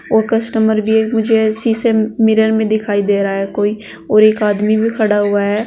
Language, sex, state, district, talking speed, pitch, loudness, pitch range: Hindi, female, Uttar Pradesh, Saharanpur, 200 wpm, 220 Hz, -14 LUFS, 210-220 Hz